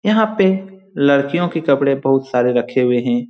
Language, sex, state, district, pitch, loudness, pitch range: Hindi, male, Bihar, Lakhisarai, 140 Hz, -16 LUFS, 125-190 Hz